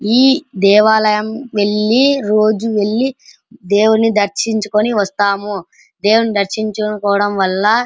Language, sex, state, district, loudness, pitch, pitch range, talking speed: Telugu, male, Andhra Pradesh, Anantapur, -14 LUFS, 215 Hz, 205-225 Hz, 90 wpm